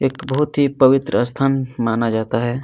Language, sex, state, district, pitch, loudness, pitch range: Hindi, male, Chhattisgarh, Kabirdham, 130 Hz, -18 LUFS, 120-135 Hz